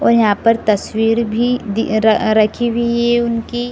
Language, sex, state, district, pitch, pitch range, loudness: Hindi, female, Chhattisgarh, Bilaspur, 230 Hz, 220-235 Hz, -15 LUFS